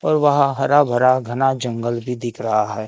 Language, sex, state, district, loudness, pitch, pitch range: Hindi, male, Maharashtra, Gondia, -18 LUFS, 125 Hz, 120-135 Hz